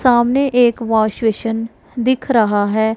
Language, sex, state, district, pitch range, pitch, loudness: Hindi, female, Punjab, Pathankot, 220-245 Hz, 230 Hz, -16 LUFS